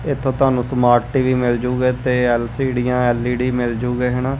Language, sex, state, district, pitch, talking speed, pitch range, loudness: Punjabi, male, Punjab, Kapurthala, 125 Hz, 190 wpm, 120-130 Hz, -18 LUFS